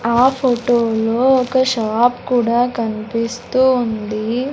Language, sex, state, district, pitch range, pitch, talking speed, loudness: Telugu, male, Andhra Pradesh, Sri Satya Sai, 230-255 Hz, 240 Hz, 105 wpm, -16 LUFS